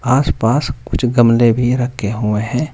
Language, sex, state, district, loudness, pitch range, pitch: Hindi, male, Uttar Pradesh, Saharanpur, -15 LUFS, 115-130 Hz, 120 Hz